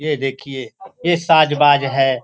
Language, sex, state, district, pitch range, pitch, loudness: Hindi, male, Bihar, Gopalganj, 135-160 Hz, 145 Hz, -16 LUFS